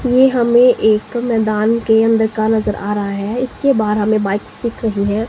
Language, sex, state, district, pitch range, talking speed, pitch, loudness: Hindi, female, Himachal Pradesh, Shimla, 210-235 Hz, 205 wpm, 220 Hz, -15 LUFS